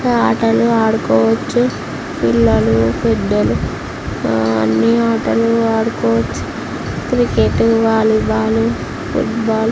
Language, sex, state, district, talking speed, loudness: Telugu, female, Andhra Pradesh, Visakhapatnam, 85 wpm, -15 LUFS